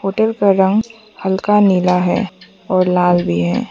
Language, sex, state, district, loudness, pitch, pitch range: Hindi, female, Arunachal Pradesh, Papum Pare, -15 LUFS, 190 Hz, 180-205 Hz